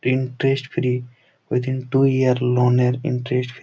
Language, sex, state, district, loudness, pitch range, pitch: Bengali, male, West Bengal, Jalpaiguri, -20 LUFS, 125-130 Hz, 125 Hz